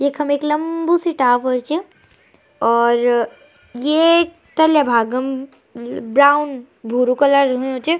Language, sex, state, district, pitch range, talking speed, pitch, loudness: Garhwali, female, Uttarakhand, Tehri Garhwal, 250-310 Hz, 120 wpm, 280 Hz, -17 LUFS